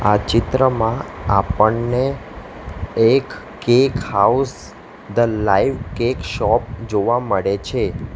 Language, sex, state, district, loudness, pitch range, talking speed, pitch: Gujarati, male, Gujarat, Valsad, -18 LUFS, 100-125 Hz, 95 wpm, 115 Hz